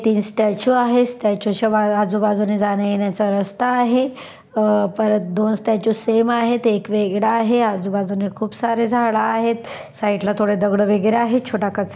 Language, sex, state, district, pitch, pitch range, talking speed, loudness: Marathi, female, Maharashtra, Pune, 215 Hz, 205-230 Hz, 150 wpm, -18 LUFS